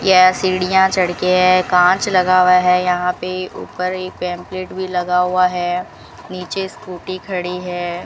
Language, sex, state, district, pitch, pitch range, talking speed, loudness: Hindi, female, Rajasthan, Bikaner, 185 Hz, 180-185 Hz, 155 wpm, -17 LUFS